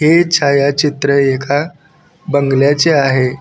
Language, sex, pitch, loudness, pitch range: Marathi, male, 145 Hz, -13 LUFS, 140-160 Hz